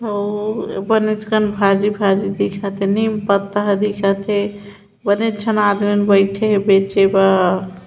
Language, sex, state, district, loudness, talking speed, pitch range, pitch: Hindi, female, Chhattisgarh, Bilaspur, -17 LUFS, 145 wpm, 195-210 Hz, 205 Hz